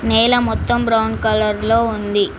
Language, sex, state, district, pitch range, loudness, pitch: Telugu, female, Telangana, Mahabubabad, 215-230 Hz, -16 LUFS, 225 Hz